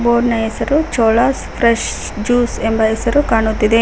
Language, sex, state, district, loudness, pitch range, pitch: Kannada, female, Karnataka, Koppal, -15 LUFS, 225-245 Hz, 230 Hz